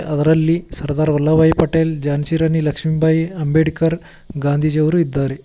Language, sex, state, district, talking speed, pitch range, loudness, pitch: Kannada, male, Karnataka, Koppal, 120 wpm, 150-160 Hz, -17 LUFS, 155 Hz